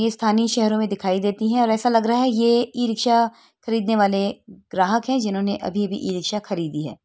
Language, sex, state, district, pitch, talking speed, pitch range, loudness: Hindi, female, Uttar Pradesh, Etah, 220 Hz, 210 wpm, 200-230 Hz, -21 LUFS